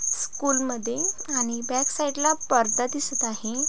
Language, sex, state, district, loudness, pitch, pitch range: Marathi, female, Maharashtra, Pune, -24 LUFS, 260 Hz, 240-285 Hz